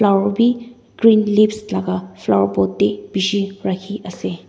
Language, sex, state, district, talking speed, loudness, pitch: Nagamese, female, Nagaland, Dimapur, 145 wpm, -18 LUFS, 195 Hz